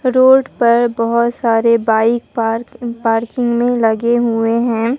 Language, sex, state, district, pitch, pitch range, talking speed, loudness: Hindi, female, Bihar, Katihar, 235 Hz, 230-240 Hz, 130 wpm, -14 LUFS